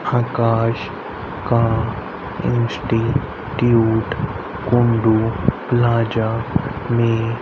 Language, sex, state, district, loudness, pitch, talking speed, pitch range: Hindi, male, Haryana, Rohtak, -19 LUFS, 115 Hz, 55 wpm, 115-120 Hz